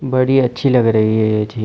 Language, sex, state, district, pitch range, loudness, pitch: Hindi, female, Chhattisgarh, Bilaspur, 110-130 Hz, -15 LUFS, 120 Hz